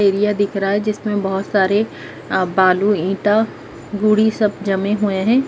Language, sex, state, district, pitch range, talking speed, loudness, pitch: Hindi, female, Chhattisgarh, Sukma, 195-210 Hz, 155 wpm, -17 LUFS, 205 Hz